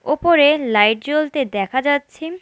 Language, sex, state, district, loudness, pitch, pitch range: Bengali, female, West Bengal, Alipurduar, -16 LUFS, 285 Hz, 255-305 Hz